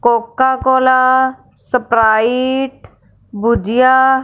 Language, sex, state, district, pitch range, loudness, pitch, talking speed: Hindi, female, Punjab, Fazilka, 235-260 Hz, -13 LUFS, 255 Hz, 55 wpm